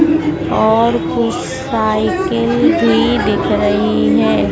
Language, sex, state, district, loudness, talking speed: Hindi, female, Madhya Pradesh, Dhar, -14 LUFS, 95 wpm